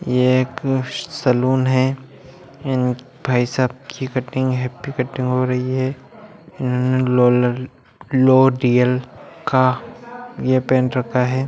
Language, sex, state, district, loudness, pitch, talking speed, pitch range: Hindi, male, Bihar, Bhagalpur, -19 LUFS, 130 Hz, 110 wpm, 125-130 Hz